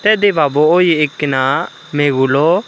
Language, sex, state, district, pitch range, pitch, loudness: Chakma, male, Tripura, Unakoti, 140-180 Hz, 150 Hz, -14 LUFS